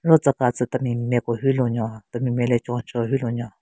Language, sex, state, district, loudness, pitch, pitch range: Rengma, female, Nagaland, Kohima, -23 LUFS, 120 Hz, 120-130 Hz